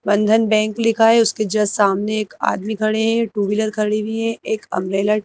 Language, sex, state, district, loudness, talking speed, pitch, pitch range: Hindi, female, Madhya Pradesh, Bhopal, -18 LUFS, 215 wpm, 215 Hz, 210-225 Hz